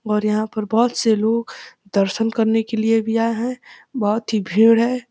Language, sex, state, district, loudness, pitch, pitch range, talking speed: Hindi, male, Uttar Pradesh, Deoria, -19 LUFS, 225 Hz, 215-230 Hz, 200 wpm